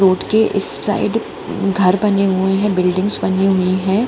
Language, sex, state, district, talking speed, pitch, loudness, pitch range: Hindi, female, Jharkhand, Jamtara, 175 wpm, 195 Hz, -16 LUFS, 185-200 Hz